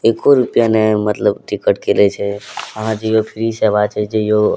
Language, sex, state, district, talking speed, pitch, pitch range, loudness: Maithili, male, Bihar, Madhepura, 195 wpm, 110 Hz, 105-110 Hz, -15 LUFS